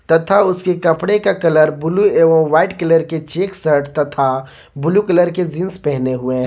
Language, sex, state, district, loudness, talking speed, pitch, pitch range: Hindi, male, Jharkhand, Garhwa, -15 LUFS, 175 wpm, 165 Hz, 150-185 Hz